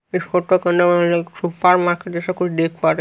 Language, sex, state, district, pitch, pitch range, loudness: Hindi, male, Haryana, Rohtak, 175 Hz, 170-180 Hz, -18 LUFS